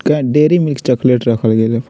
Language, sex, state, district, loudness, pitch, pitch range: Bhojpuri, male, Bihar, Muzaffarpur, -13 LUFS, 125 Hz, 115-150 Hz